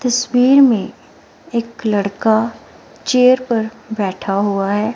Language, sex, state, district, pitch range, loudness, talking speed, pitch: Hindi, female, Himachal Pradesh, Shimla, 205-250 Hz, -16 LUFS, 110 wpm, 225 Hz